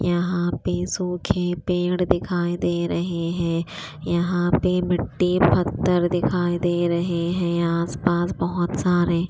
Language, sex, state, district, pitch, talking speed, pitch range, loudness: Hindi, female, Chandigarh, Chandigarh, 175 Hz, 130 wpm, 170-180 Hz, -22 LUFS